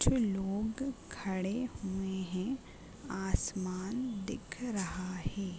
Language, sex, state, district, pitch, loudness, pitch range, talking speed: Hindi, female, Uttar Pradesh, Gorakhpur, 195 Hz, -37 LUFS, 190-230 Hz, 95 wpm